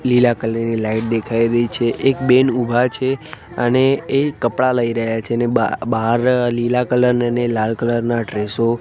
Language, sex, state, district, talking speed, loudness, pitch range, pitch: Gujarati, male, Gujarat, Gandhinagar, 195 wpm, -17 LUFS, 115-125 Hz, 120 Hz